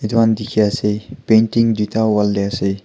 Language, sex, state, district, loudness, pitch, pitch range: Nagamese, male, Nagaland, Kohima, -17 LUFS, 110 Hz, 105-110 Hz